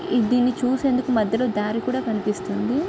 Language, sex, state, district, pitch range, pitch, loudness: Telugu, female, Andhra Pradesh, Krishna, 220-255 Hz, 245 Hz, -22 LUFS